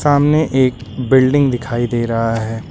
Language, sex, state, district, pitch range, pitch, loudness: Hindi, male, Uttar Pradesh, Lucknow, 115-140 Hz, 125 Hz, -15 LUFS